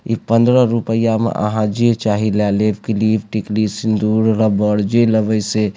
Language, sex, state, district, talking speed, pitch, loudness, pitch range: Maithili, male, Bihar, Supaul, 165 wpm, 110 Hz, -16 LUFS, 105-115 Hz